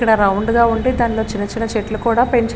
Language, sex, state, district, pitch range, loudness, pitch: Telugu, female, Andhra Pradesh, Srikakulam, 215-235 Hz, -17 LUFS, 225 Hz